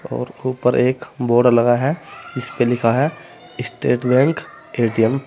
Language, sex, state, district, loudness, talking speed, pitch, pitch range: Hindi, male, Uttar Pradesh, Saharanpur, -18 LUFS, 160 wpm, 125 Hz, 120-135 Hz